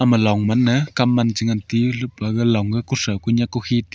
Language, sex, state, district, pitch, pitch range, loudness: Wancho, male, Arunachal Pradesh, Longding, 120 Hz, 110-125 Hz, -19 LUFS